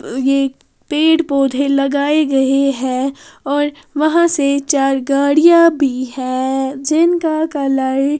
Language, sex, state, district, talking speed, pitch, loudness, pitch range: Hindi, female, Haryana, Jhajjar, 110 wpm, 280 Hz, -15 LUFS, 270-310 Hz